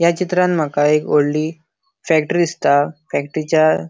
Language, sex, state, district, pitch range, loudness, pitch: Konkani, male, Goa, North and South Goa, 150-170 Hz, -17 LUFS, 155 Hz